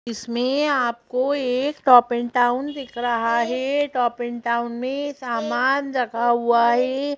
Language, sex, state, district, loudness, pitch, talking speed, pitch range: Hindi, female, Madhya Pradesh, Bhopal, -21 LUFS, 245 Hz, 140 wpm, 235-270 Hz